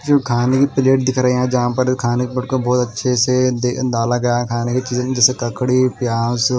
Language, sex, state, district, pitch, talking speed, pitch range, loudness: Hindi, male, Odisha, Malkangiri, 125 Hz, 220 wpm, 120-130 Hz, -17 LUFS